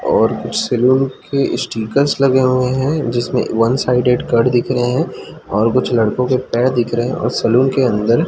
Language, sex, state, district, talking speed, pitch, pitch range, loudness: Hindi, male, Chhattisgarh, Raipur, 195 wpm, 125 Hz, 120-130 Hz, -16 LUFS